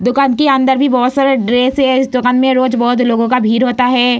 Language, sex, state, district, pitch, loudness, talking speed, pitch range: Hindi, female, Bihar, Samastipur, 255 Hz, -12 LUFS, 255 wpm, 245-265 Hz